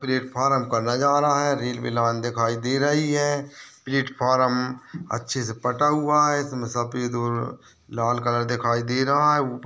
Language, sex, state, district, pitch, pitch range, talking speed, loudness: Hindi, male, Rajasthan, Nagaur, 125 Hz, 120-140 Hz, 155 wpm, -23 LUFS